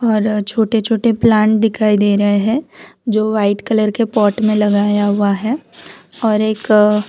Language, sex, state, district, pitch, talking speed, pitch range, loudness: Hindi, female, Gujarat, Valsad, 215 Hz, 160 wpm, 205-225 Hz, -15 LUFS